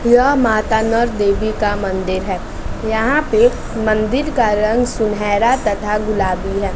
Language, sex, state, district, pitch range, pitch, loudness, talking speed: Hindi, female, Bihar, West Champaran, 205-240 Hz, 215 Hz, -16 LUFS, 135 wpm